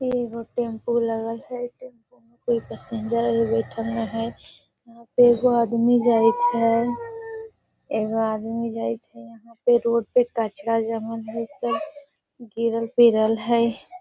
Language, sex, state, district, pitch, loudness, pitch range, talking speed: Magahi, female, Bihar, Gaya, 230 Hz, -23 LUFS, 225-240 Hz, 135 wpm